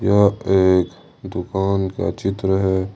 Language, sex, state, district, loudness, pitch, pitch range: Hindi, male, Jharkhand, Ranchi, -19 LUFS, 95 Hz, 90-100 Hz